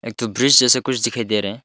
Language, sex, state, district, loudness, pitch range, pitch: Hindi, male, Arunachal Pradesh, Longding, -16 LUFS, 115-130 Hz, 120 Hz